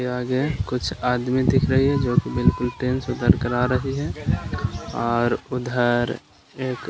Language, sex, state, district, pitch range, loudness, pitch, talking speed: Hindi, male, Maharashtra, Aurangabad, 120-130 Hz, -22 LUFS, 125 Hz, 175 wpm